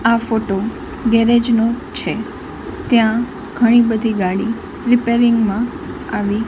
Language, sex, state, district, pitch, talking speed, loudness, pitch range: Gujarati, female, Gujarat, Gandhinagar, 230 Hz, 110 wpm, -16 LUFS, 225-235 Hz